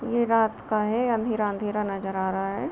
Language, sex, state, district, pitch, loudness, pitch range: Hindi, female, Jharkhand, Sahebganj, 215 Hz, -26 LUFS, 200-230 Hz